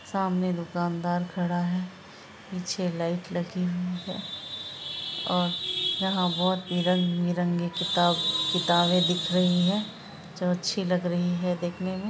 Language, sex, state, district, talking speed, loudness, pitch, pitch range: Hindi, female, Bihar, Araria, 130 wpm, -27 LUFS, 180 Hz, 175-185 Hz